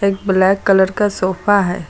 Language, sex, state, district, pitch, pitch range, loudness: Hindi, female, Uttar Pradesh, Lucknow, 195 Hz, 185-200 Hz, -15 LUFS